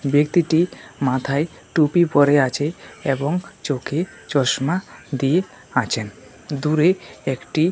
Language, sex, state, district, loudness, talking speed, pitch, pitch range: Bengali, male, Tripura, West Tripura, -21 LUFS, 95 wpm, 145 Hz, 135-170 Hz